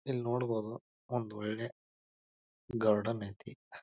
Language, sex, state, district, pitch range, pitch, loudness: Kannada, male, Karnataka, Bijapur, 105-120 Hz, 115 Hz, -36 LUFS